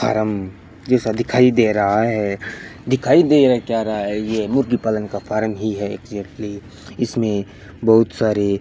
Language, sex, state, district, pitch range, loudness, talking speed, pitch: Hindi, male, Rajasthan, Bikaner, 100-115 Hz, -18 LUFS, 165 wpm, 110 Hz